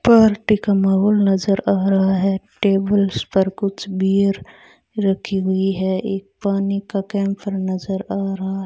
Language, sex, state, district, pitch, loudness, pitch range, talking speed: Hindi, female, Rajasthan, Bikaner, 195 Hz, -19 LUFS, 190-200 Hz, 150 wpm